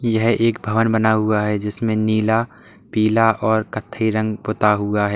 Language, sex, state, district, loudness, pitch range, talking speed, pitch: Hindi, male, Uttar Pradesh, Lalitpur, -19 LUFS, 105-115 Hz, 175 wpm, 110 Hz